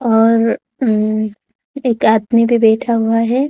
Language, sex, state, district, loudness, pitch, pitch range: Hindi, female, Odisha, Khordha, -14 LUFS, 230 Hz, 220-240 Hz